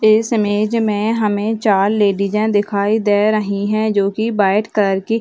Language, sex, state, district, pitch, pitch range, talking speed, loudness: Hindi, female, Bihar, Madhepura, 210 Hz, 205-220 Hz, 175 wpm, -16 LUFS